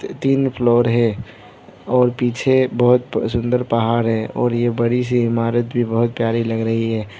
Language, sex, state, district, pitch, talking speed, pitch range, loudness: Hindi, male, Arunachal Pradesh, Lower Dibang Valley, 120 Hz, 175 wpm, 115-125 Hz, -18 LUFS